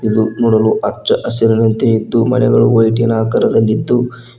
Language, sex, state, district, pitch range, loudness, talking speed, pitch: Kannada, male, Karnataka, Koppal, 110-120 Hz, -13 LUFS, 125 wpm, 115 Hz